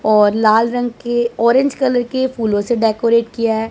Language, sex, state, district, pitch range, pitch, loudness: Hindi, female, Punjab, Pathankot, 220-245 Hz, 235 Hz, -15 LUFS